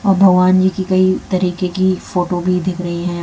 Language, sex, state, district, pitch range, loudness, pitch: Hindi, female, Haryana, Jhajjar, 180-185 Hz, -15 LUFS, 185 Hz